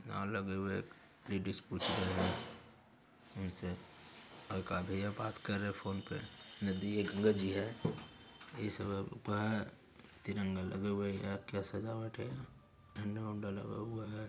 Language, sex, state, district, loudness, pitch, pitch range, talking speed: Hindi, male, Bihar, Gaya, -40 LUFS, 100 Hz, 95-110 Hz, 45 wpm